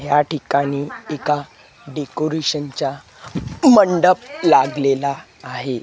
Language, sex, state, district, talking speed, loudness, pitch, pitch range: Marathi, male, Maharashtra, Gondia, 80 wpm, -18 LUFS, 145 Hz, 140-155 Hz